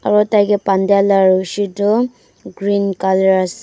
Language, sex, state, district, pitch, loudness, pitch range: Nagamese, female, Nagaland, Dimapur, 200 Hz, -15 LUFS, 190-205 Hz